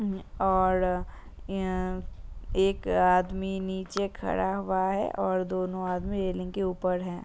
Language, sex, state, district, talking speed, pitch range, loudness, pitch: Hindi, female, Uttar Pradesh, Jalaun, 130 wpm, 185-190 Hz, -29 LUFS, 185 Hz